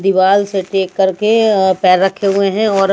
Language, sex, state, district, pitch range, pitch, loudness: Hindi, female, Bihar, Patna, 190-200 Hz, 195 Hz, -13 LUFS